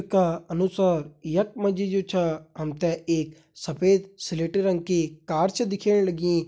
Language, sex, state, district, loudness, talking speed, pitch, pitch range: Hindi, male, Uttarakhand, Tehri Garhwal, -25 LUFS, 165 wpm, 175 Hz, 165-195 Hz